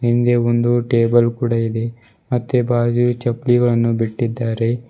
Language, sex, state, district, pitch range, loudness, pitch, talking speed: Kannada, male, Karnataka, Bidar, 115-120 Hz, -18 LUFS, 120 Hz, 110 wpm